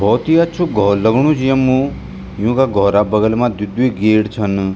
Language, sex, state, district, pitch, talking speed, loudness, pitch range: Garhwali, male, Uttarakhand, Tehri Garhwal, 110 Hz, 200 wpm, -14 LUFS, 100-130 Hz